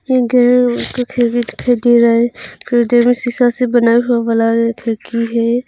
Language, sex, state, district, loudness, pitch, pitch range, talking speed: Hindi, female, Arunachal Pradesh, Longding, -14 LUFS, 240 Hz, 235-245 Hz, 150 wpm